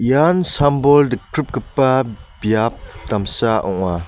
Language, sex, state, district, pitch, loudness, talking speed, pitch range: Garo, male, Meghalaya, West Garo Hills, 120 Hz, -17 LUFS, 90 wpm, 105-145 Hz